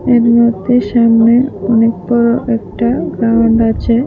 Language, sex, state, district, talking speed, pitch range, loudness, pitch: Bengali, female, Tripura, West Tripura, 120 wpm, 230-240 Hz, -12 LUFS, 235 Hz